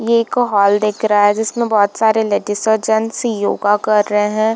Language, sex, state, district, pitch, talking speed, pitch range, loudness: Hindi, female, Bihar, Darbhanga, 215 Hz, 210 wpm, 205-225 Hz, -15 LUFS